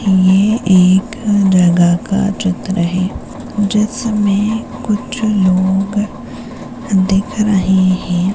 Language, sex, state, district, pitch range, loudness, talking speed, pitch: Hindi, female, Maharashtra, Sindhudurg, 185-210 Hz, -14 LUFS, 85 wpm, 195 Hz